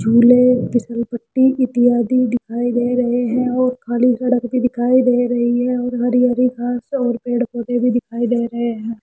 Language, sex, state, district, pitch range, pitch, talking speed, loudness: Hindi, female, Rajasthan, Jaipur, 240-250 Hz, 245 Hz, 185 wpm, -17 LUFS